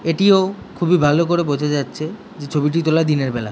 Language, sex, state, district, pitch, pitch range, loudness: Bengali, male, West Bengal, Jhargram, 160 Hz, 145-175 Hz, -18 LUFS